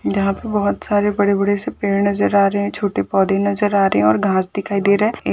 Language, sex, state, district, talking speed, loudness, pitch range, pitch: Hindi, female, Rajasthan, Churu, 270 wpm, -17 LUFS, 195-205 Hz, 200 Hz